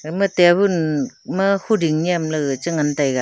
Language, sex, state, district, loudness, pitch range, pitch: Wancho, female, Arunachal Pradesh, Longding, -19 LUFS, 150-190 Hz, 165 Hz